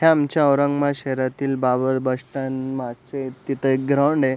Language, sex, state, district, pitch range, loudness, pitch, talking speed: Marathi, male, Maharashtra, Aurangabad, 130-140 Hz, -22 LUFS, 135 Hz, 165 wpm